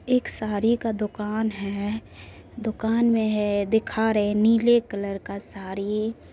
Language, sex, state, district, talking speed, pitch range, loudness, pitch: Maithili, female, Bihar, Supaul, 140 wpm, 205-225 Hz, -24 LUFS, 215 Hz